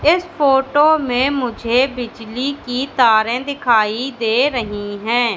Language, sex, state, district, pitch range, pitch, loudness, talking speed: Hindi, female, Madhya Pradesh, Katni, 230-275 Hz, 250 Hz, -17 LUFS, 125 wpm